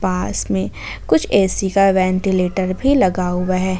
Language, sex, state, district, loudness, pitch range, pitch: Hindi, female, Jharkhand, Ranchi, -17 LUFS, 130-190 Hz, 185 Hz